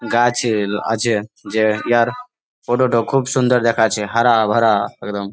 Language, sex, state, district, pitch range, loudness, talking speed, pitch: Bengali, male, West Bengal, Malda, 110-120 Hz, -17 LUFS, 135 wpm, 115 Hz